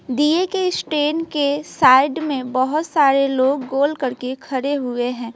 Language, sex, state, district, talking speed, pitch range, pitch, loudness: Hindi, female, West Bengal, Alipurduar, 155 wpm, 260-305 Hz, 280 Hz, -19 LUFS